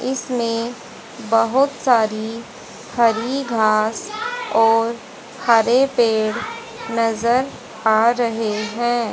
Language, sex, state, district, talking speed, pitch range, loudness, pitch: Hindi, female, Haryana, Jhajjar, 80 wpm, 225-255 Hz, -19 LUFS, 230 Hz